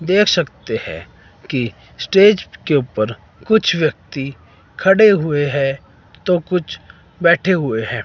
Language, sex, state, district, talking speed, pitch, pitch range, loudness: Hindi, male, Himachal Pradesh, Shimla, 125 wpm, 145 Hz, 115-180 Hz, -16 LUFS